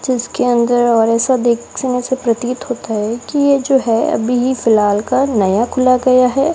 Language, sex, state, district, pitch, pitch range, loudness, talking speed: Hindi, female, Rajasthan, Bikaner, 245 Hz, 230-260 Hz, -14 LUFS, 190 wpm